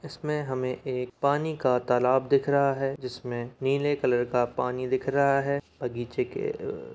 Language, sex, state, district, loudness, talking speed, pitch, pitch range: Hindi, male, Bihar, Samastipur, -27 LUFS, 165 wpm, 135 Hz, 125-145 Hz